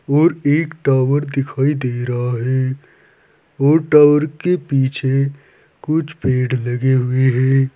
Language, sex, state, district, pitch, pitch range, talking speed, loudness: Hindi, male, Uttar Pradesh, Saharanpur, 135 Hz, 130-150 Hz, 125 wpm, -17 LUFS